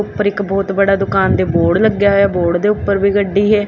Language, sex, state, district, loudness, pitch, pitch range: Punjabi, female, Punjab, Kapurthala, -14 LUFS, 200 Hz, 195-205 Hz